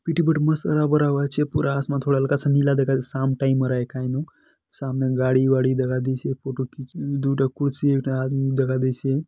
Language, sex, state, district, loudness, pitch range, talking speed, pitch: Halbi, male, Chhattisgarh, Bastar, -22 LUFS, 130-140 Hz, 200 wpm, 135 Hz